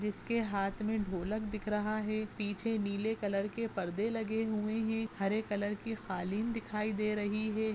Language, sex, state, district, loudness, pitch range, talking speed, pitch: Hindi, female, Maharashtra, Sindhudurg, -35 LUFS, 205-220 Hz, 180 wpm, 215 Hz